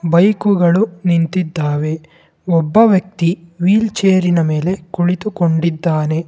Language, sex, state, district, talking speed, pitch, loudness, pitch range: Kannada, male, Karnataka, Bangalore, 75 wpm, 175 Hz, -15 LUFS, 165-190 Hz